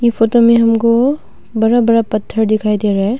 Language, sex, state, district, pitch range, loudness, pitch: Hindi, female, Arunachal Pradesh, Longding, 215-235 Hz, -13 LUFS, 230 Hz